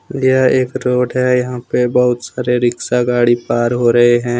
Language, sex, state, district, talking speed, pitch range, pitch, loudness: Hindi, male, Jharkhand, Deoghar, 205 wpm, 120-125 Hz, 125 Hz, -14 LUFS